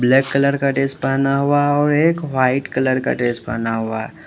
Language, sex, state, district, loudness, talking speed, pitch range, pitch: Hindi, male, Uttar Pradesh, Lalitpur, -18 LUFS, 195 wpm, 125-140 Hz, 135 Hz